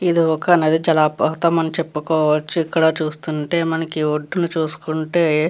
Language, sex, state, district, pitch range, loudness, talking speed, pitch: Telugu, female, Andhra Pradesh, Krishna, 155-165 Hz, -19 LUFS, 130 wpm, 160 Hz